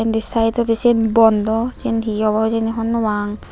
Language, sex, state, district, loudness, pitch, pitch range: Chakma, female, Tripura, Unakoti, -17 LUFS, 225 Hz, 220-230 Hz